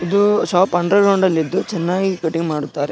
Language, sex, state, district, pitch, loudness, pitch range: Kannada, male, Karnataka, Gulbarga, 180 Hz, -17 LUFS, 165-195 Hz